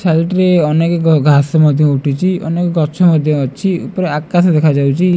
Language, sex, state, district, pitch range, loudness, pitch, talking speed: Odia, female, Odisha, Malkangiri, 150-175 Hz, -13 LUFS, 165 Hz, 150 wpm